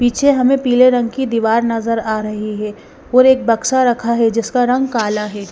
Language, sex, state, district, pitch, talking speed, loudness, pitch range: Hindi, female, Bihar, West Champaran, 235 Hz, 205 wpm, -15 LUFS, 220-255 Hz